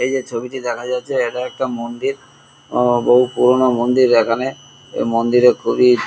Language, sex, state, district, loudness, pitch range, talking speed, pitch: Bengali, male, West Bengal, Kolkata, -17 LUFS, 120-130 Hz, 170 wpm, 125 Hz